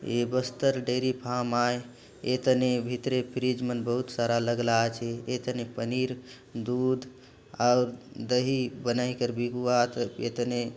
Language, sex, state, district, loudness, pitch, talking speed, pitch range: Halbi, male, Chhattisgarh, Bastar, -29 LUFS, 125 Hz, 135 wpm, 120-125 Hz